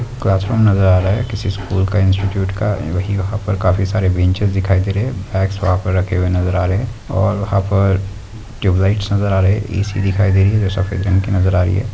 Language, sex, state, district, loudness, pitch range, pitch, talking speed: Hindi, male, Maharashtra, Nagpur, -16 LUFS, 95-100 Hz, 95 Hz, 255 wpm